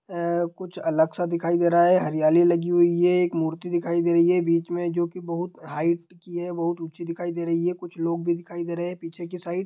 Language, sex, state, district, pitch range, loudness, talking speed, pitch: Hindi, male, Bihar, Sitamarhi, 170-175 Hz, -24 LUFS, 275 wpm, 170 Hz